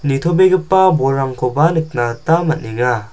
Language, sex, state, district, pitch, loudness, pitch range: Garo, male, Meghalaya, South Garo Hills, 145 Hz, -15 LUFS, 125-170 Hz